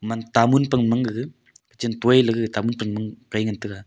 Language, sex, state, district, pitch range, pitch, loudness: Wancho, male, Arunachal Pradesh, Longding, 110-120 Hz, 115 Hz, -22 LUFS